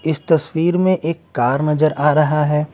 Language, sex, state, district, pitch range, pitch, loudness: Hindi, male, Bihar, Patna, 150-165 Hz, 155 Hz, -17 LUFS